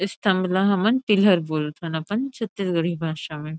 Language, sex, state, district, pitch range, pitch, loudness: Chhattisgarhi, female, Chhattisgarh, Rajnandgaon, 160-205 Hz, 185 Hz, -22 LUFS